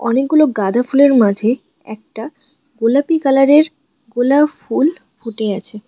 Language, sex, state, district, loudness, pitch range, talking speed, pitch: Bengali, female, West Bengal, Alipurduar, -14 LUFS, 225-290 Hz, 110 wpm, 260 Hz